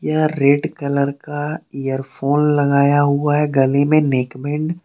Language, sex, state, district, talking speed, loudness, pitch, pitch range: Hindi, male, Jharkhand, Deoghar, 150 wpm, -17 LUFS, 145 Hz, 140-150 Hz